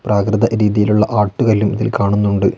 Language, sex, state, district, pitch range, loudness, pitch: Malayalam, male, Kerala, Wayanad, 100-110 Hz, -15 LUFS, 105 Hz